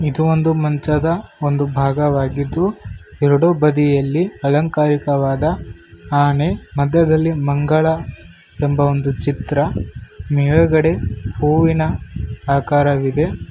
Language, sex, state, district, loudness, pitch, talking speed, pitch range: Kannada, male, Karnataka, Koppal, -17 LUFS, 145 Hz, 75 wpm, 140-155 Hz